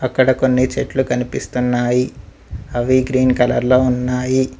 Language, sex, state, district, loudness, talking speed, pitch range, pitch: Telugu, male, Telangana, Mahabubabad, -17 LUFS, 105 wpm, 125-130 Hz, 125 Hz